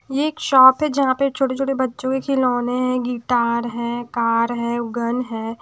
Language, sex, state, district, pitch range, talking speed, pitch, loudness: Hindi, female, Odisha, Sambalpur, 235-265 Hz, 190 wpm, 250 Hz, -19 LUFS